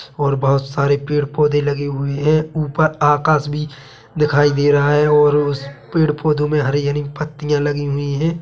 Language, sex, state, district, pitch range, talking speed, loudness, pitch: Hindi, male, Chhattisgarh, Bilaspur, 140-150 Hz, 180 wpm, -17 LUFS, 145 Hz